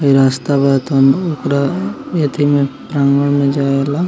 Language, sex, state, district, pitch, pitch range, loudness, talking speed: Bhojpuri, male, Bihar, Muzaffarpur, 140 Hz, 135-145 Hz, -14 LUFS, 120 wpm